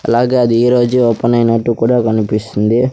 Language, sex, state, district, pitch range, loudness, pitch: Telugu, male, Andhra Pradesh, Sri Satya Sai, 115-120 Hz, -13 LUFS, 120 Hz